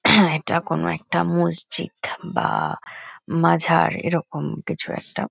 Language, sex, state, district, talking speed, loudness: Bengali, female, West Bengal, Kolkata, 100 wpm, -21 LUFS